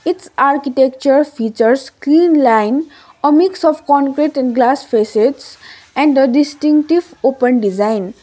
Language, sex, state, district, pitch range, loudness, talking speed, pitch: English, female, Sikkim, Gangtok, 250-300 Hz, -13 LUFS, 125 wpm, 275 Hz